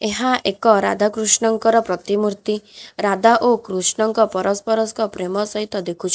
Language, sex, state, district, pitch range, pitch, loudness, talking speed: Odia, female, Odisha, Khordha, 200-225 Hz, 210 Hz, -18 LUFS, 135 wpm